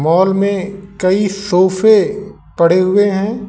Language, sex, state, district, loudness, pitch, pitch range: Hindi, male, Uttar Pradesh, Lalitpur, -13 LUFS, 195 Hz, 185-205 Hz